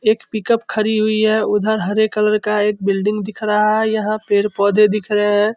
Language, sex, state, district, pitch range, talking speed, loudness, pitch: Hindi, male, Bihar, Samastipur, 210-215 Hz, 205 wpm, -17 LUFS, 210 Hz